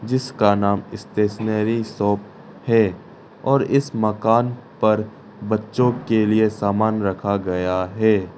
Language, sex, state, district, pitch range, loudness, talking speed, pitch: Hindi, male, Arunachal Pradesh, Lower Dibang Valley, 100-115 Hz, -20 LUFS, 115 wpm, 110 Hz